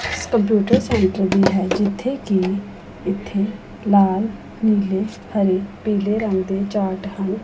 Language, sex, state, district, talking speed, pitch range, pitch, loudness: Punjabi, female, Punjab, Pathankot, 105 wpm, 190-210 Hz, 200 Hz, -20 LUFS